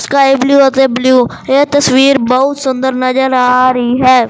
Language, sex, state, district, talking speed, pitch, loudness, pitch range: Punjabi, male, Punjab, Fazilka, 165 wpm, 265 Hz, -10 LUFS, 255-275 Hz